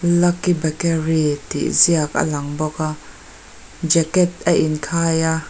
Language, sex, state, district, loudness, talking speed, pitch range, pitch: Mizo, female, Mizoram, Aizawl, -18 LUFS, 130 wpm, 155-170 Hz, 160 Hz